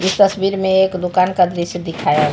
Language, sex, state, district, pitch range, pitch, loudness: Hindi, female, Jharkhand, Palamu, 175-190 Hz, 185 Hz, -16 LUFS